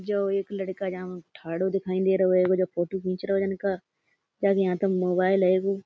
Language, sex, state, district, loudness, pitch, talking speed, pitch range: Hindi, female, Uttar Pradesh, Budaun, -26 LUFS, 190 Hz, 215 wpm, 185-195 Hz